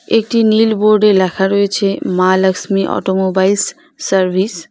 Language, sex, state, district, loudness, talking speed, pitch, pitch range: Bengali, female, West Bengal, Cooch Behar, -13 LUFS, 125 wpm, 195 Hz, 190-215 Hz